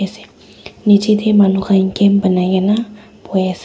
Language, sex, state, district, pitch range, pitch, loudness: Nagamese, female, Nagaland, Dimapur, 190-210 Hz, 200 Hz, -14 LUFS